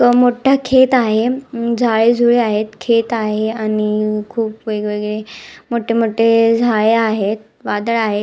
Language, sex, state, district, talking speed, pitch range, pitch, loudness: Marathi, female, Maharashtra, Nagpur, 140 wpm, 215-235 Hz, 225 Hz, -15 LUFS